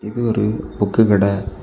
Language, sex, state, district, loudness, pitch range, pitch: Tamil, male, Tamil Nadu, Kanyakumari, -18 LUFS, 100-110 Hz, 105 Hz